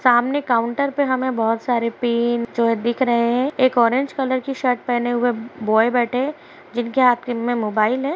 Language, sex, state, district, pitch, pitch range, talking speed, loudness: Hindi, female, Uttar Pradesh, Ghazipur, 245 Hz, 235-260 Hz, 205 wpm, -20 LUFS